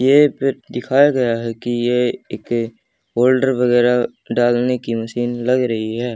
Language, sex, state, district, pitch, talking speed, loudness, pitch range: Hindi, male, Haryana, Charkhi Dadri, 120 Hz, 155 wpm, -18 LUFS, 120-130 Hz